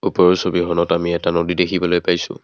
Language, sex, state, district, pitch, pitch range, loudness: Assamese, male, Assam, Kamrup Metropolitan, 90 Hz, 85-90 Hz, -17 LUFS